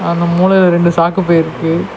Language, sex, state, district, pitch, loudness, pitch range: Tamil, male, Tamil Nadu, Nilgiris, 170 Hz, -12 LUFS, 170-180 Hz